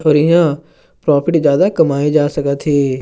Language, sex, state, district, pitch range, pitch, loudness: Chhattisgarhi, male, Chhattisgarh, Sarguja, 140-165 Hz, 150 Hz, -14 LUFS